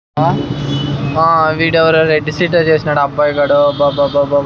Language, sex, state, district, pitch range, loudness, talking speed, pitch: Telugu, male, Andhra Pradesh, Sri Satya Sai, 145-160 Hz, -13 LUFS, 135 wpm, 145 Hz